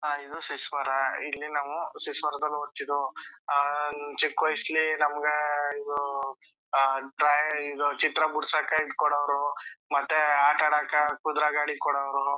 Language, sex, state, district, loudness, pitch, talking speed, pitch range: Kannada, male, Karnataka, Chamarajanagar, -26 LUFS, 145 Hz, 90 wpm, 145-150 Hz